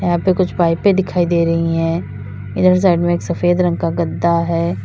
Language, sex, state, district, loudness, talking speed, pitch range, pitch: Hindi, female, Uttar Pradesh, Lalitpur, -16 LUFS, 210 wpm, 165-180 Hz, 170 Hz